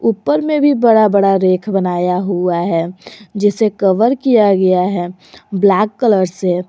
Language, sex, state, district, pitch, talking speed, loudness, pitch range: Hindi, female, Jharkhand, Garhwa, 195 Hz, 150 wpm, -14 LUFS, 185-220 Hz